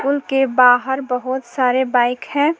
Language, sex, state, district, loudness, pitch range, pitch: Hindi, female, Jharkhand, Palamu, -17 LUFS, 250-275 Hz, 260 Hz